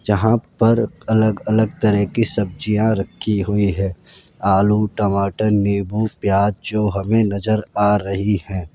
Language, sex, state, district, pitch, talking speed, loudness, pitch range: Hindi, male, Rajasthan, Jaipur, 105 Hz, 130 wpm, -18 LUFS, 100-110 Hz